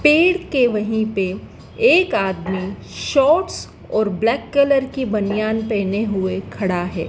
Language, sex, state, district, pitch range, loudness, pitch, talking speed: Hindi, female, Madhya Pradesh, Dhar, 195-275 Hz, -19 LUFS, 215 Hz, 135 wpm